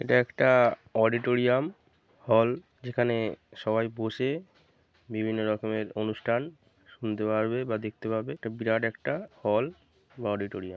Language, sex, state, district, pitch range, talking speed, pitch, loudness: Bengali, male, West Bengal, Kolkata, 110-120 Hz, 120 wpm, 110 Hz, -29 LUFS